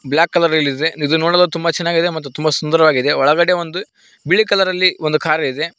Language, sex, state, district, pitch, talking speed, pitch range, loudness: Kannada, male, Karnataka, Koppal, 165 Hz, 155 wpm, 155-175 Hz, -15 LUFS